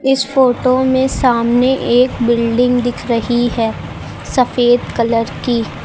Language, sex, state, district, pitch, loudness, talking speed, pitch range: Hindi, female, Uttar Pradesh, Lucknow, 245 Hz, -14 LUFS, 125 wpm, 235-255 Hz